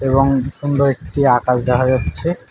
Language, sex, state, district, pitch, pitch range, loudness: Bengali, male, West Bengal, Alipurduar, 135 Hz, 125-140 Hz, -16 LUFS